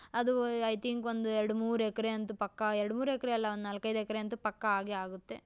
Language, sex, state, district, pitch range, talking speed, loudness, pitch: Kannada, female, Karnataka, Dakshina Kannada, 210-235 Hz, 220 wpm, -34 LUFS, 220 Hz